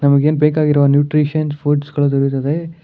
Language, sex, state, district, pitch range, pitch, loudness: Kannada, male, Karnataka, Bangalore, 140-150 Hz, 145 Hz, -15 LUFS